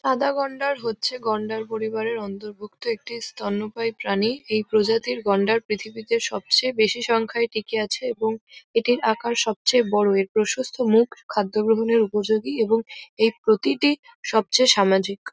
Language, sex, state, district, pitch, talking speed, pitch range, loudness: Bengali, female, West Bengal, Kolkata, 225 Hz, 135 wpm, 215-240 Hz, -22 LUFS